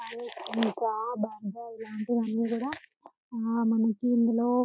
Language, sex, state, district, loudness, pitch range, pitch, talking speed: Telugu, female, Telangana, Karimnagar, -29 LUFS, 225-240 Hz, 230 Hz, 75 wpm